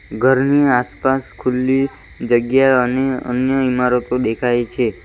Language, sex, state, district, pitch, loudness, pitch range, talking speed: Gujarati, male, Gujarat, Valsad, 125 Hz, -17 LUFS, 125-135 Hz, 105 wpm